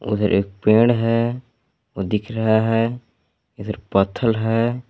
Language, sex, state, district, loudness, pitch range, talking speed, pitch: Hindi, male, Jharkhand, Palamu, -20 LUFS, 105-115 Hz, 135 wpm, 110 Hz